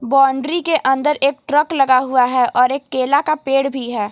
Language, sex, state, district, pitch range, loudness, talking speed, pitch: Hindi, female, Jharkhand, Garhwa, 255-285 Hz, -16 LUFS, 220 wpm, 270 Hz